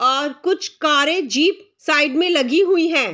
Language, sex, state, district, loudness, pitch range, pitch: Hindi, female, Bihar, Saharsa, -17 LUFS, 290-370 Hz, 320 Hz